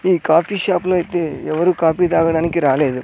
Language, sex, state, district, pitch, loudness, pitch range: Telugu, male, Andhra Pradesh, Sri Satya Sai, 170 Hz, -17 LUFS, 160-180 Hz